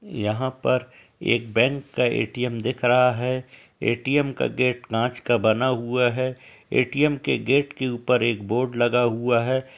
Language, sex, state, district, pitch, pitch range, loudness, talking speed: Hindi, male, Uttar Pradesh, Etah, 125 Hz, 120-130 Hz, -23 LUFS, 165 wpm